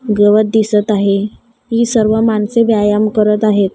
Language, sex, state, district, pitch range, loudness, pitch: Marathi, female, Maharashtra, Gondia, 210-225 Hz, -13 LUFS, 215 Hz